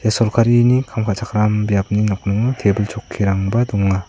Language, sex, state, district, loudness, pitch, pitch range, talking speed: Garo, male, Meghalaya, South Garo Hills, -17 LUFS, 105 Hz, 100-115 Hz, 115 wpm